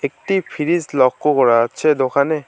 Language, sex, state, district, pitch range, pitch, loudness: Bengali, male, West Bengal, Alipurduar, 130-155 Hz, 150 Hz, -17 LUFS